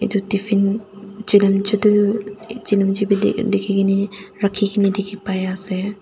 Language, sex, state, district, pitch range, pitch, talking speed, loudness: Nagamese, female, Nagaland, Dimapur, 195-205 Hz, 200 Hz, 110 wpm, -19 LUFS